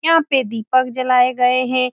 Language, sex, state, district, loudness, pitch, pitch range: Hindi, female, Bihar, Saran, -16 LUFS, 255 Hz, 250-255 Hz